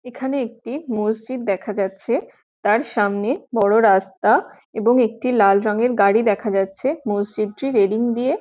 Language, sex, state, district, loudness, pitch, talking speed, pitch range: Bengali, female, West Bengal, Jhargram, -19 LUFS, 220 Hz, 145 wpm, 205-250 Hz